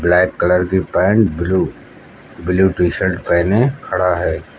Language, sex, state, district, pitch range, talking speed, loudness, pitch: Hindi, male, Uttar Pradesh, Lucknow, 90-95 Hz, 145 wpm, -16 LUFS, 90 Hz